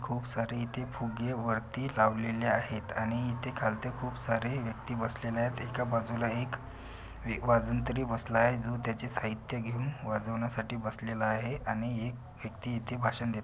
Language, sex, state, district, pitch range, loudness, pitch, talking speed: Marathi, male, Maharashtra, Pune, 115-120 Hz, -33 LUFS, 115 Hz, 150 wpm